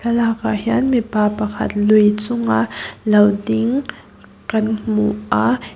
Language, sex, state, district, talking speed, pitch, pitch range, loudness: Mizo, female, Mizoram, Aizawl, 125 wpm, 215 Hz, 210-235 Hz, -17 LUFS